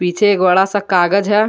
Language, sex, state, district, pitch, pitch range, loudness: Hindi, male, Jharkhand, Garhwa, 200 Hz, 180-205 Hz, -14 LUFS